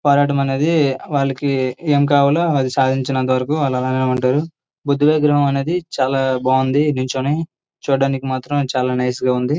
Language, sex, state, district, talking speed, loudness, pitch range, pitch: Telugu, male, Andhra Pradesh, Srikakulam, 145 wpm, -17 LUFS, 130-145 Hz, 135 Hz